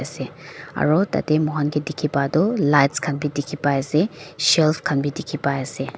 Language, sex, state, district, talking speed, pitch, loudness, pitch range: Nagamese, female, Nagaland, Dimapur, 190 wpm, 150 Hz, -21 LUFS, 140-155 Hz